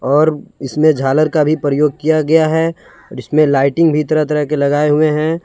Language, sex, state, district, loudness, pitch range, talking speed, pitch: Hindi, male, Jharkhand, Palamu, -14 LUFS, 145-155 Hz, 200 wpm, 150 Hz